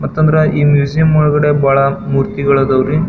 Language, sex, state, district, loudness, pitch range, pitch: Kannada, male, Karnataka, Belgaum, -12 LUFS, 140-155 Hz, 145 Hz